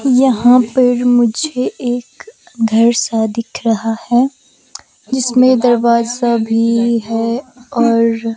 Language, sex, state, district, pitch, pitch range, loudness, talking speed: Hindi, female, Himachal Pradesh, Shimla, 240 Hz, 230-255 Hz, -14 LUFS, 105 wpm